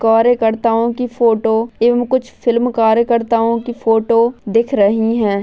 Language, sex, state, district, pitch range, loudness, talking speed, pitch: Hindi, female, Maharashtra, Aurangabad, 225-240 Hz, -15 LUFS, 145 wpm, 230 Hz